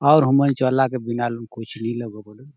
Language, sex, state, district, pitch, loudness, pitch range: Halbi, male, Chhattisgarh, Bastar, 120 Hz, -21 LUFS, 115-135 Hz